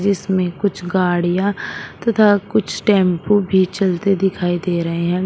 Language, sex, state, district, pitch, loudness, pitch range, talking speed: Hindi, male, Uttar Pradesh, Shamli, 190 Hz, -17 LUFS, 175-200 Hz, 135 wpm